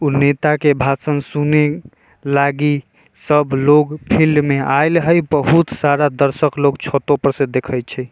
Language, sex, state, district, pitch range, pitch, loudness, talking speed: Bajjika, male, Bihar, Vaishali, 140-150 Hz, 145 Hz, -15 LUFS, 155 wpm